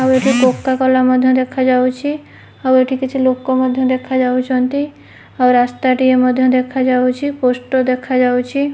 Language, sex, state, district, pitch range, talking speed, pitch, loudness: Odia, female, Odisha, Malkangiri, 255-260 Hz, 125 wpm, 255 Hz, -15 LUFS